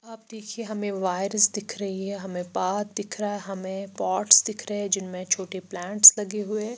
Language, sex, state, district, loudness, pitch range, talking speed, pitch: Hindi, female, Chandigarh, Chandigarh, -22 LUFS, 190-210 Hz, 195 wpm, 205 Hz